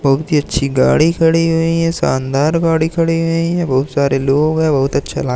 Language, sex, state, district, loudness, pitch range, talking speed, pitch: Hindi, male, Madhya Pradesh, Katni, -14 LUFS, 140-165 Hz, 210 wpm, 155 Hz